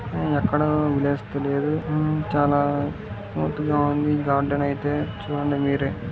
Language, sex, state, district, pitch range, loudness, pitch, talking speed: Telugu, male, Karnataka, Gulbarga, 140-150 Hz, -23 LUFS, 145 Hz, 100 wpm